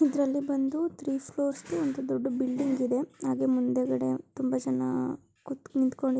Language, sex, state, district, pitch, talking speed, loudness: Kannada, female, Karnataka, Dharwad, 265 Hz, 155 wpm, -29 LUFS